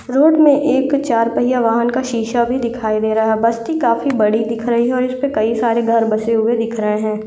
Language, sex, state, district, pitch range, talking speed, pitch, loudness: Hindi, female, Uttarakhand, Uttarkashi, 225-255 Hz, 240 wpm, 230 Hz, -16 LUFS